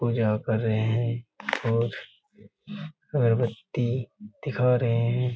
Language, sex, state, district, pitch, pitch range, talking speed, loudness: Hindi, male, Chhattisgarh, Korba, 120 Hz, 115-130 Hz, 100 wpm, -26 LUFS